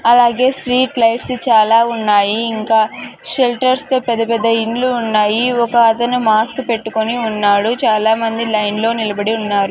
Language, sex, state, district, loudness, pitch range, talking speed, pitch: Telugu, female, Andhra Pradesh, Sri Satya Sai, -14 LUFS, 220-240 Hz, 135 wpm, 230 Hz